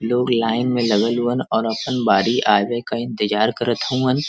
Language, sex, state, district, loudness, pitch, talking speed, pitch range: Bhojpuri, male, Uttar Pradesh, Varanasi, -19 LUFS, 120 Hz, 180 wpm, 115-125 Hz